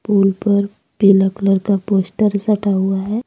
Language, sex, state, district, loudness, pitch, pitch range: Hindi, female, Jharkhand, Deoghar, -16 LUFS, 200 Hz, 195-205 Hz